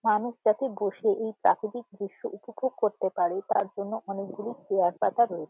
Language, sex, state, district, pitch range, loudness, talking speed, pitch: Bengali, female, West Bengal, Jhargram, 195-225 Hz, -29 LUFS, 165 wpm, 210 Hz